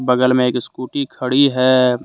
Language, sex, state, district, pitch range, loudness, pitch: Hindi, male, Jharkhand, Deoghar, 125-130 Hz, -16 LUFS, 130 Hz